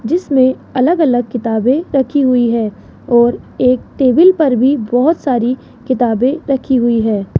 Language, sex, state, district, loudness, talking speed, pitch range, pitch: Hindi, female, Rajasthan, Jaipur, -13 LUFS, 145 wpm, 240-275 Hz, 255 Hz